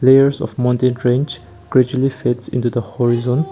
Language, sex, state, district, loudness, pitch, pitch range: English, male, Nagaland, Kohima, -17 LUFS, 125 Hz, 125-135 Hz